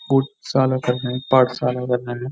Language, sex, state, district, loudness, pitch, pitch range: Hindi, male, Uttar Pradesh, Jyotiba Phule Nagar, -20 LUFS, 125 Hz, 125-130 Hz